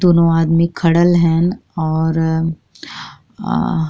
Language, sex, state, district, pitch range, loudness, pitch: Bhojpuri, female, Uttar Pradesh, Deoria, 160-170 Hz, -15 LUFS, 165 Hz